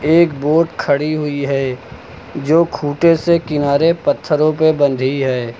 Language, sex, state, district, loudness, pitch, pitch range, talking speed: Hindi, male, Uttar Pradesh, Lucknow, -15 LUFS, 150 Hz, 140-165 Hz, 140 wpm